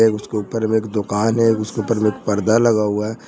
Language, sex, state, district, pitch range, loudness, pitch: Hindi, male, Jharkhand, Ranchi, 105-115 Hz, -18 LUFS, 110 Hz